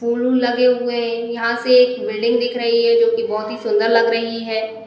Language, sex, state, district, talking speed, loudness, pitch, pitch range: Hindi, female, Uttar Pradesh, Budaun, 235 wpm, -17 LUFS, 235 Hz, 230-250 Hz